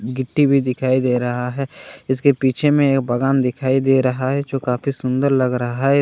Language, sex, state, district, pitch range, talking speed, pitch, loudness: Hindi, male, Bihar, Katihar, 125-140 Hz, 240 wpm, 130 Hz, -18 LUFS